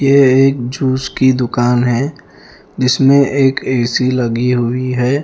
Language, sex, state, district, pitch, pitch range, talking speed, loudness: Hindi, male, Punjab, Fazilka, 130 Hz, 125-135 Hz, 135 wpm, -13 LUFS